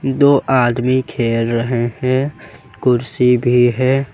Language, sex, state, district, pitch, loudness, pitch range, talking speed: Hindi, male, Jharkhand, Ranchi, 125 Hz, -15 LUFS, 120-130 Hz, 115 wpm